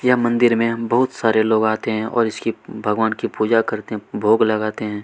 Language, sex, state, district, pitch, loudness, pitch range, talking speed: Hindi, male, Chhattisgarh, Kabirdham, 110 Hz, -19 LUFS, 110-115 Hz, 225 wpm